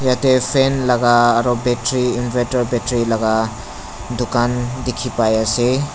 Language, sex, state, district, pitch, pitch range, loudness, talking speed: Nagamese, male, Nagaland, Dimapur, 120 Hz, 120-125 Hz, -17 LUFS, 120 wpm